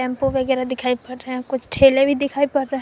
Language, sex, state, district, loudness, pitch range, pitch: Hindi, female, Jharkhand, Garhwa, -19 LUFS, 255-275 Hz, 265 Hz